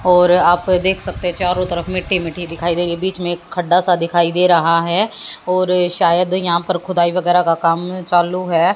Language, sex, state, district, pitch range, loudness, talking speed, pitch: Hindi, female, Haryana, Jhajjar, 170-185 Hz, -15 LUFS, 210 wpm, 180 Hz